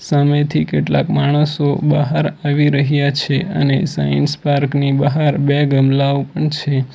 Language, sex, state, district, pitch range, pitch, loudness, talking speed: Gujarati, male, Gujarat, Valsad, 140-145 Hz, 140 Hz, -16 LUFS, 130 wpm